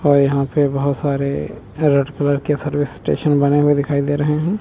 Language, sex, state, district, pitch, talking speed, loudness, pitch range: Hindi, male, Chandigarh, Chandigarh, 145 Hz, 210 wpm, -18 LUFS, 140-150 Hz